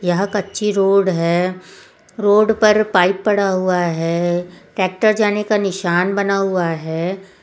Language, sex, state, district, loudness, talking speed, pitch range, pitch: Hindi, female, Uttar Pradesh, Lucknow, -17 LUFS, 135 wpm, 180-205 Hz, 190 Hz